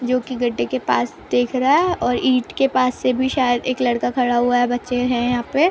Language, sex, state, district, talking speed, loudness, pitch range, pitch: Hindi, female, Jharkhand, Sahebganj, 260 wpm, -19 LUFS, 245-255 Hz, 250 Hz